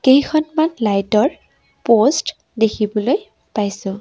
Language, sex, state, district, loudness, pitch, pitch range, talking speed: Assamese, female, Assam, Sonitpur, -17 LUFS, 225 Hz, 210-305 Hz, 90 wpm